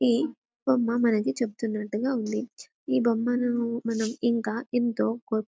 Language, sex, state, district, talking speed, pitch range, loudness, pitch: Telugu, female, Telangana, Karimnagar, 120 wpm, 225-245 Hz, -27 LUFS, 235 Hz